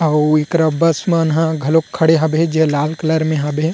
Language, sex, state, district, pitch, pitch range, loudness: Chhattisgarhi, male, Chhattisgarh, Rajnandgaon, 160 Hz, 155-165 Hz, -15 LUFS